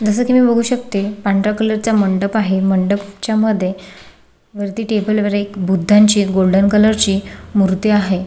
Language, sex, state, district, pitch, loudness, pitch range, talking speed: Marathi, female, Maharashtra, Sindhudurg, 205 Hz, -15 LUFS, 195-215 Hz, 140 wpm